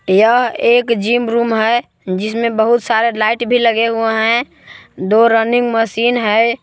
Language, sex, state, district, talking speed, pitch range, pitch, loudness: Hindi, male, Jharkhand, Palamu, 155 wpm, 220-235 Hz, 230 Hz, -14 LUFS